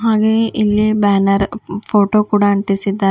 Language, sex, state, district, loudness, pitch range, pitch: Kannada, female, Karnataka, Bidar, -15 LUFS, 200-215 Hz, 210 Hz